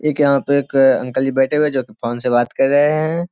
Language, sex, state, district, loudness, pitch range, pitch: Hindi, male, Bihar, Sitamarhi, -16 LUFS, 130-150 Hz, 135 Hz